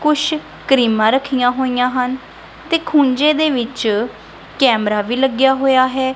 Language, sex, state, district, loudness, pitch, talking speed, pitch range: Punjabi, female, Punjab, Kapurthala, -16 LUFS, 260 Hz, 135 wpm, 245-280 Hz